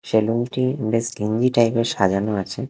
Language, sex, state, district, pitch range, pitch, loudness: Bengali, male, Odisha, Khordha, 105-120 Hz, 115 Hz, -21 LUFS